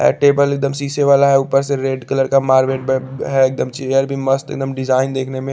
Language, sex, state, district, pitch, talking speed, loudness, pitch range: Hindi, male, Chandigarh, Chandigarh, 135 Hz, 250 wpm, -16 LUFS, 130-140 Hz